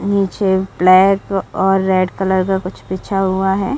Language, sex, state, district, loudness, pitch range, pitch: Hindi, female, Bihar, Saran, -15 LUFS, 185-195 Hz, 190 Hz